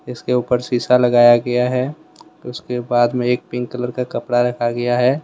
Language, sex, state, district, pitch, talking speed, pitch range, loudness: Hindi, male, Jharkhand, Deoghar, 125 Hz, 195 wpm, 120-125 Hz, -17 LUFS